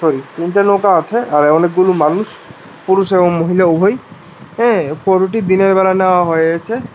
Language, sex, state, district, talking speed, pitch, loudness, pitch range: Bengali, male, Tripura, West Tripura, 145 wpm, 185 Hz, -13 LUFS, 165-195 Hz